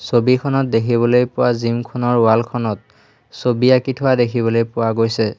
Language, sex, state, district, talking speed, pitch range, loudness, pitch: Assamese, male, Assam, Hailakandi, 145 wpm, 115-125 Hz, -17 LUFS, 120 Hz